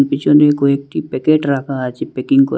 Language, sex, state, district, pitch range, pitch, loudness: Bengali, male, Assam, Hailakandi, 135-150 Hz, 140 Hz, -15 LUFS